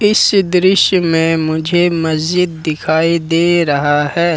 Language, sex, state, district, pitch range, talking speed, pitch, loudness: Hindi, male, Jharkhand, Ranchi, 160-175 Hz, 125 wpm, 165 Hz, -13 LUFS